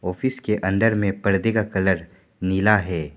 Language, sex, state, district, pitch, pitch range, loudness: Hindi, male, Arunachal Pradesh, Papum Pare, 95 Hz, 95-105 Hz, -21 LUFS